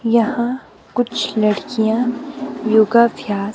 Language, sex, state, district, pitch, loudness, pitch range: Hindi, female, Himachal Pradesh, Shimla, 235 Hz, -18 LUFS, 220-245 Hz